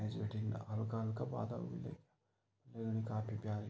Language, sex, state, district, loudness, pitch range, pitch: Garhwali, male, Uttarakhand, Tehri Garhwal, -42 LUFS, 105-115 Hz, 110 Hz